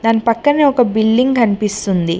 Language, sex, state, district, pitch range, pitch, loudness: Telugu, female, Telangana, Mahabubabad, 210-245 Hz, 225 Hz, -14 LUFS